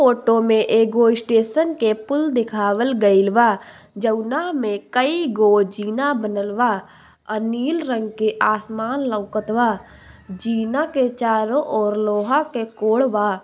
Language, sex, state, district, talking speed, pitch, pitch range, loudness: Bhojpuri, female, Bihar, Gopalganj, 140 wpm, 225 Hz, 215-250 Hz, -19 LUFS